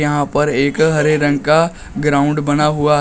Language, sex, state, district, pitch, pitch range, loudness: Hindi, male, Uttar Pradesh, Shamli, 150 Hz, 145-150 Hz, -15 LUFS